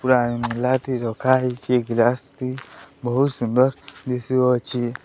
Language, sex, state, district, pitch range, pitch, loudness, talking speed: Odia, male, Odisha, Sambalpur, 120-130 Hz, 125 Hz, -21 LUFS, 70 wpm